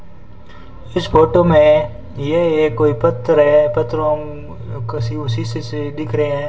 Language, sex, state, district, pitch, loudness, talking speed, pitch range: Hindi, male, Rajasthan, Bikaner, 145 Hz, -16 LUFS, 130 wpm, 115-150 Hz